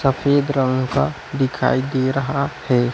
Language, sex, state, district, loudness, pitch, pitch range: Hindi, male, Chhattisgarh, Raipur, -20 LUFS, 135 Hz, 130-140 Hz